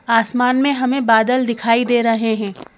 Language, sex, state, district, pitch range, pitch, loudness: Hindi, female, Madhya Pradesh, Bhopal, 225-255 Hz, 235 Hz, -16 LUFS